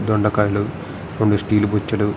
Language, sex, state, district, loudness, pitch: Telugu, male, Andhra Pradesh, Srikakulam, -19 LUFS, 105 Hz